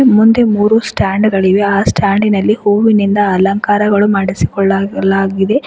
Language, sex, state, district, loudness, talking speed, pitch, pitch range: Kannada, female, Karnataka, Bidar, -12 LUFS, 115 wpm, 200 Hz, 195-210 Hz